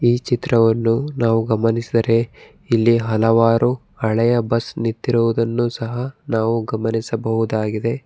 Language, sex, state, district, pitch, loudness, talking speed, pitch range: Kannada, male, Karnataka, Bangalore, 115 Hz, -19 LUFS, 90 wpm, 115-120 Hz